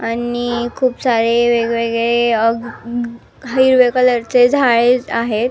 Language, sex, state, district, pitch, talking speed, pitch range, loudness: Marathi, female, Maharashtra, Nagpur, 240 Hz, 130 wpm, 235-250 Hz, -15 LUFS